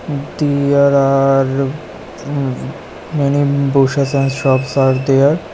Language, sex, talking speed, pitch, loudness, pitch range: English, male, 85 wpm, 140 Hz, -15 LUFS, 135-140 Hz